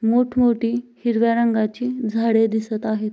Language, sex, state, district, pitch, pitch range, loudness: Marathi, female, Maharashtra, Sindhudurg, 230 Hz, 220-240 Hz, -20 LUFS